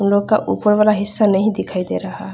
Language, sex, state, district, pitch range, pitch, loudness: Hindi, female, Bihar, Darbhanga, 200-215 Hz, 210 Hz, -17 LUFS